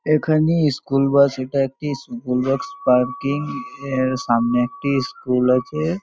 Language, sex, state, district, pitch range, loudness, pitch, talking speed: Bengali, male, West Bengal, North 24 Parganas, 125-150 Hz, -20 LUFS, 140 Hz, 120 wpm